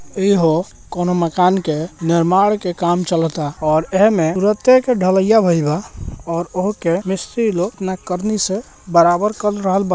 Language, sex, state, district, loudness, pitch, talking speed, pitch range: Bhojpuri, male, Bihar, Gopalganj, -17 LUFS, 185 Hz, 155 wpm, 170-205 Hz